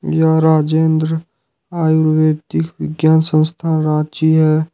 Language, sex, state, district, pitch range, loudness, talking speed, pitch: Hindi, male, Jharkhand, Ranchi, 155-160 Hz, -15 LUFS, 90 wpm, 160 Hz